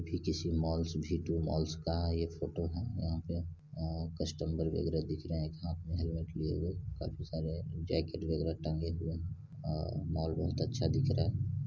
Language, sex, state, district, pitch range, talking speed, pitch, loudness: Hindi, male, Bihar, Saran, 80-85 Hz, 190 wpm, 80 Hz, -37 LUFS